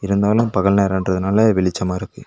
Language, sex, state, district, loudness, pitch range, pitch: Tamil, male, Tamil Nadu, Nilgiris, -17 LUFS, 95-105 Hz, 100 Hz